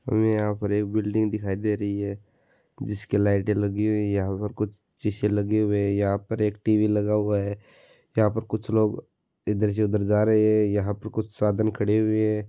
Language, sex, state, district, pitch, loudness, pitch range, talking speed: Marwari, male, Rajasthan, Churu, 105 Hz, -25 LUFS, 105-110 Hz, 220 wpm